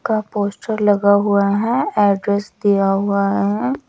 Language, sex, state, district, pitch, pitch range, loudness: Hindi, male, Odisha, Nuapada, 205 Hz, 200-215 Hz, -17 LUFS